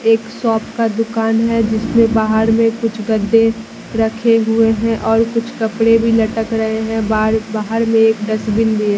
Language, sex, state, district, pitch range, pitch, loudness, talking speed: Hindi, female, Bihar, Katihar, 220-225 Hz, 225 Hz, -15 LUFS, 180 wpm